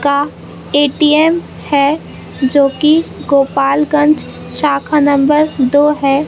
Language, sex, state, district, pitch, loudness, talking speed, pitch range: Hindi, female, Madhya Pradesh, Katni, 290 Hz, -13 LUFS, 95 wpm, 280-300 Hz